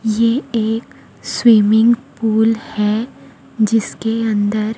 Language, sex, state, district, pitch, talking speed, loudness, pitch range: Hindi, female, Chhattisgarh, Raipur, 225 Hz, 90 wpm, -16 LUFS, 215-230 Hz